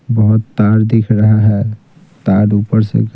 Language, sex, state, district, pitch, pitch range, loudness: Hindi, male, Bihar, Patna, 110 Hz, 105-110 Hz, -12 LUFS